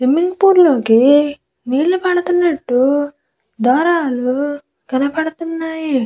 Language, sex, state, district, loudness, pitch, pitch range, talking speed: Telugu, female, Andhra Pradesh, Visakhapatnam, -15 LUFS, 290 Hz, 260-335 Hz, 70 wpm